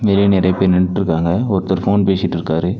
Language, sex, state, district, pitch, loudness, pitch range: Tamil, male, Tamil Nadu, Nilgiris, 95 Hz, -16 LUFS, 90-100 Hz